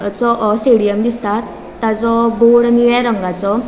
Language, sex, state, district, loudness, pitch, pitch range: Konkani, female, Goa, North and South Goa, -14 LUFS, 230 Hz, 210-235 Hz